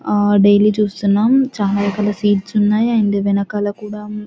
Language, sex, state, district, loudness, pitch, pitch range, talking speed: Telugu, female, Telangana, Nalgonda, -15 LUFS, 210 Hz, 205-210 Hz, 155 wpm